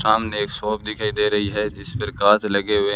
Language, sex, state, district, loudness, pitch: Hindi, male, Rajasthan, Bikaner, -21 LUFS, 105 Hz